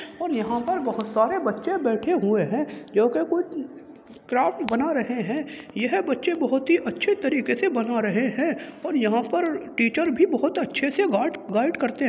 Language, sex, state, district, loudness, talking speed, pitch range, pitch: Hindi, male, Uttar Pradesh, Jyotiba Phule Nagar, -24 LUFS, 190 wpm, 235-330 Hz, 290 Hz